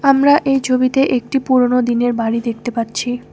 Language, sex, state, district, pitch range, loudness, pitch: Bengali, female, West Bengal, Alipurduar, 240-270 Hz, -16 LUFS, 250 Hz